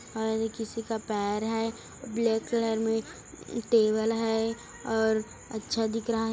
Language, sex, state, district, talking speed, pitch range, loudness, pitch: Hindi, female, Chhattisgarh, Kabirdham, 150 wpm, 220-225 Hz, -29 LUFS, 225 Hz